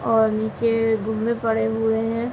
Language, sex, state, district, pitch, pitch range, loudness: Hindi, female, Uttar Pradesh, Ghazipur, 225 Hz, 220-230 Hz, -22 LUFS